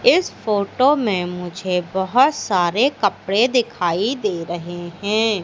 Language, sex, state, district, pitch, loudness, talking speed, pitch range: Hindi, female, Madhya Pradesh, Katni, 200 Hz, -19 LUFS, 120 wpm, 180-245 Hz